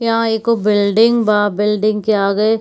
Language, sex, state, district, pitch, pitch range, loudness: Hindi, female, Bihar, Kishanganj, 215 Hz, 210-225 Hz, -15 LUFS